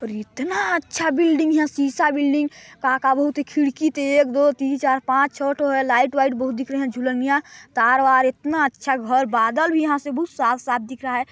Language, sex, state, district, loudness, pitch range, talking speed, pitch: Hindi, male, Chhattisgarh, Balrampur, -20 LUFS, 260-295 Hz, 180 wpm, 275 Hz